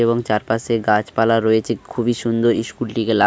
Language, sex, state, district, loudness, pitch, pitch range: Bengali, male, West Bengal, Paschim Medinipur, -19 LUFS, 115 Hz, 110-115 Hz